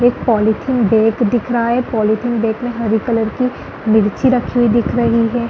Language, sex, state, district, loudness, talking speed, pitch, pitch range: Hindi, female, Chhattisgarh, Bastar, -15 LUFS, 185 wpm, 235 Hz, 220-240 Hz